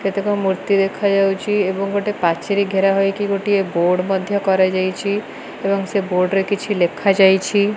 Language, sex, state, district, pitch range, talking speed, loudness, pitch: Odia, female, Odisha, Malkangiri, 190-200 Hz, 145 wpm, -18 LUFS, 195 Hz